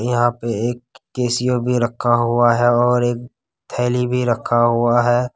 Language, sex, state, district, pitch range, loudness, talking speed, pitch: Hindi, male, Bihar, Kishanganj, 120-125 Hz, -18 LUFS, 165 wpm, 120 Hz